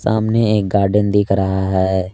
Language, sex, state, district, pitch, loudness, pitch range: Hindi, male, Jharkhand, Palamu, 100 Hz, -16 LUFS, 95-105 Hz